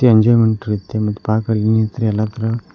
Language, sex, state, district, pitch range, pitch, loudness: Kannada, male, Karnataka, Koppal, 105-115 Hz, 110 Hz, -17 LUFS